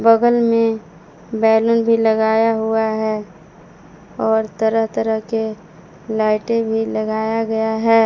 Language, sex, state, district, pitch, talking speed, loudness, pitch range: Hindi, female, Jharkhand, Palamu, 220 Hz, 120 wpm, -17 LUFS, 215-225 Hz